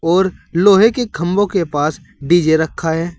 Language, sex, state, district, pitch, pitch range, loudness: Hindi, male, Uttar Pradesh, Saharanpur, 175 Hz, 160-190 Hz, -15 LUFS